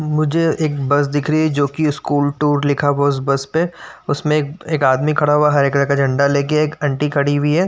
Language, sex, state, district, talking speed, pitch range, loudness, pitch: Hindi, male, Uttar Pradesh, Jyotiba Phule Nagar, 255 wpm, 140-155 Hz, -17 LUFS, 145 Hz